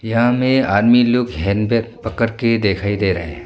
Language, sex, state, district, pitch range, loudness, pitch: Hindi, male, Arunachal Pradesh, Longding, 100-120 Hz, -16 LUFS, 115 Hz